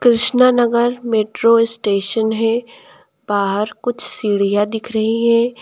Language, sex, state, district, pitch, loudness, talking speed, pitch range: Hindi, female, Uttar Pradesh, Lucknow, 230 Hz, -16 LUFS, 120 wpm, 210-240 Hz